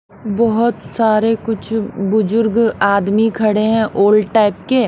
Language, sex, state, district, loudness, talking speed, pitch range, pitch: Hindi, female, Haryana, Rohtak, -15 LUFS, 125 wpm, 205-225 Hz, 220 Hz